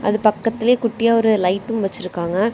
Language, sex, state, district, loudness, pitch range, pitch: Tamil, female, Tamil Nadu, Kanyakumari, -18 LUFS, 195-230 Hz, 215 Hz